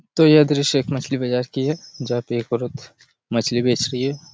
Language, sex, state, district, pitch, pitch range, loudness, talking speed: Hindi, male, Chhattisgarh, Raigarh, 135 Hz, 125-145 Hz, -20 LUFS, 220 wpm